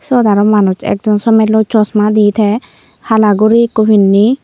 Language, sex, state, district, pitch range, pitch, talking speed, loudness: Chakma, female, Tripura, Unakoti, 210-220 Hz, 215 Hz, 160 wpm, -10 LUFS